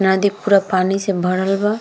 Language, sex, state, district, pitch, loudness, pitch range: Bhojpuri, female, Bihar, East Champaran, 195 Hz, -17 LUFS, 190-205 Hz